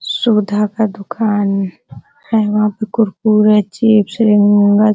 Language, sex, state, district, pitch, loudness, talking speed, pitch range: Hindi, female, Bihar, Araria, 210 Hz, -14 LUFS, 120 wpm, 205-220 Hz